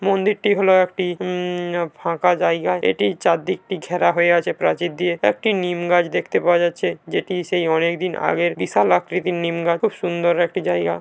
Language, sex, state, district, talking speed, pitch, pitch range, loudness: Bengali, male, West Bengal, Paschim Medinipur, 170 wpm, 175 Hz, 170-185 Hz, -19 LUFS